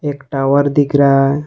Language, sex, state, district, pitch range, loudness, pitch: Hindi, male, Jharkhand, Ranchi, 140-145 Hz, -13 LUFS, 140 Hz